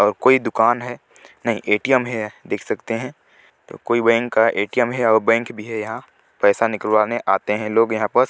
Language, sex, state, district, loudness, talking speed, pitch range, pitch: Hindi, male, Chhattisgarh, Sarguja, -19 LUFS, 165 wpm, 105-120 Hz, 115 Hz